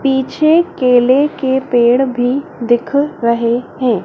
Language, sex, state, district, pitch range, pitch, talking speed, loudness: Hindi, female, Madhya Pradesh, Dhar, 240-280 Hz, 260 Hz, 120 wpm, -14 LUFS